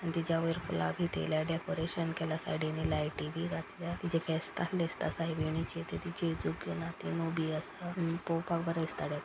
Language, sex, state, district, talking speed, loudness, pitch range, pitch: Konkani, male, Goa, North and South Goa, 190 wpm, -36 LUFS, 150-165 Hz, 165 Hz